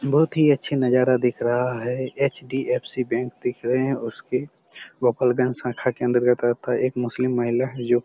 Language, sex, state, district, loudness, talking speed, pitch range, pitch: Hindi, male, Chhattisgarh, Raigarh, -22 LUFS, 180 wpm, 120-130 Hz, 125 Hz